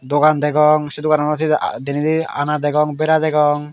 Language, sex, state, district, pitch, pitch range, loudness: Chakma, male, Tripura, Dhalai, 150 Hz, 150-155 Hz, -17 LUFS